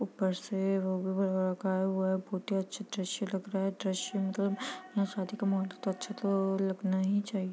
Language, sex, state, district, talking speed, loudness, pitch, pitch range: Hindi, female, Bihar, East Champaran, 175 wpm, -33 LUFS, 195 Hz, 190-200 Hz